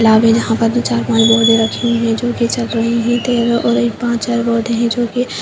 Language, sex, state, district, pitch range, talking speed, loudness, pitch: Hindi, female, Uttarakhand, Uttarkashi, 230-240 Hz, 245 wpm, -14 LUFS, 235 Hz